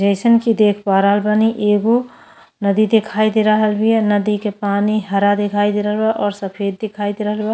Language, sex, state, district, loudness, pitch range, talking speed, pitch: Bhojpuri, female, Uttar Pradesh, Ghazipur, -16 LUFS, 205-215 Hz, 205 wpm, 210 Hz